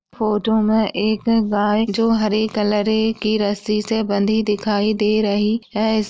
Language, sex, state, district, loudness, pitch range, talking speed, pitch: Hindi, female, Uttar Pradesh, Deoria, -19 LUFS, 210-220 Hz, 165 wpm, 215 Hz